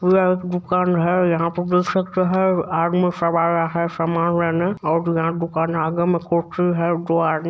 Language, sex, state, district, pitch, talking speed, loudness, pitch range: Maithili, male, Bihar, Supaul, 170 Hz, 210 wpm, -20 LUFS, 165-180 Hz